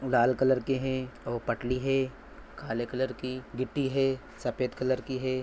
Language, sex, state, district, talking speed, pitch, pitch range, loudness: Hindi, male, Bihar, Gaya, 175 wpm, 130 Hz, 125-130 Hz, -30 LUFS